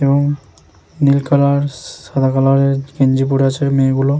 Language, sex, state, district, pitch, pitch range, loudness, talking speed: Bengali, male, West Bengal, Jhargram, 135 Hz, 135-140 Hz, -15 LUFS, 155 wpm